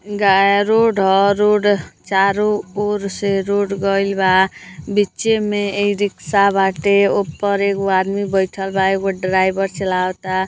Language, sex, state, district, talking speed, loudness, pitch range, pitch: Hindi, female, Uttar Pradesh, Gorakhpur, 125 wpm, -17 LUFS, 190-205 Hz, 195 Hz